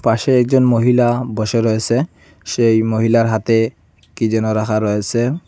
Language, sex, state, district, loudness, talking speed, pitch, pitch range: Bengali, male, Assam, Hailakandi, -16 LUFS, 130 wpm, 115 Hz, 110-120 Hz